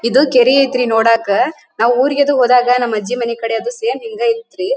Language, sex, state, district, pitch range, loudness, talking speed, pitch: Kannada, female, Karnataka, Dharwad, 235-300 Hz, -14 LUFS, 175 wpm, 250 Hz